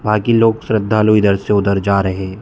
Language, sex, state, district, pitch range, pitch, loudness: Hindi, male, Bihar, Muzaffarpur, 100-110 Hz, 105 Hz, -14 LUFS